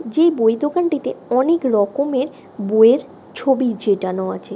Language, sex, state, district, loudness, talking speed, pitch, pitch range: Bengali, female, West Bengal, Paschim Medinipur, -18 LUFS, 120 wpm, 255 Hz, 220-290 Hz